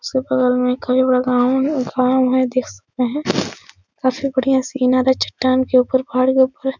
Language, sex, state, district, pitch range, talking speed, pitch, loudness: Hindi, female, Uttar Pradesh, Etah, 255-260 Hz, 220 wpm, 255 Hz, -17 LUFS